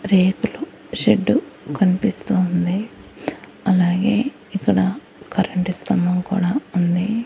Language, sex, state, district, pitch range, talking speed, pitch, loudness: Telugu, male, Andhra Pradesh, Annamaya, 180-215 Hz, 85 wpm, 190 Hz, -20 LUFS